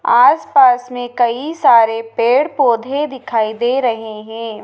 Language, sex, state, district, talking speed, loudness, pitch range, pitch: Hindi, female, Madhya Pradesh, Dhar, 140 wpm, -14 LUFS, 225-270 Hz, 240 Hz